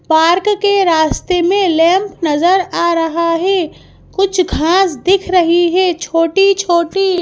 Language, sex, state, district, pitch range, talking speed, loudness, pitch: Hindi, female, Madhya Pradesh, Bhopal, 335-385 Hz, 135 wpm, -13 LUFS, 355 Hz